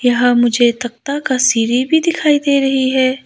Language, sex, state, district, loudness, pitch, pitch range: Hindi, female, Arunachal Pradesh, Lower Dibang Valley, -14 LUFS, 255 Hz, 245-280 Hz